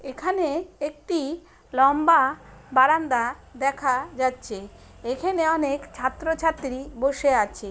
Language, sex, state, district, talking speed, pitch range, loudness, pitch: Bengali, female, West Bengal, Purulia, 85 wpm, 255-320 Hz, -24 LUFS, 280 Hz